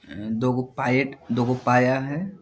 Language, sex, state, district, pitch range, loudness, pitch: Hindi, male, Bihar, Jahanabad, 125-135 Hz, -23 LUFS, 125 Hz